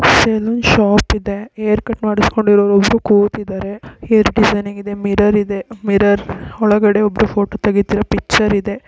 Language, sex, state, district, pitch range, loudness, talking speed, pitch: Kannada, female, Karnataka, Belgaum, 205-215 Hz, -14 LUFS, 115 wpm, 210 Hz